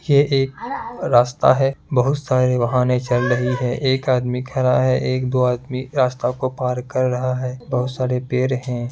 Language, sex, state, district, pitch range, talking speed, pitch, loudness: Hindi, male, Bihar, Kishanganj, 125-130 Hz, 190 wpm, 125 Hz, -19 LUFS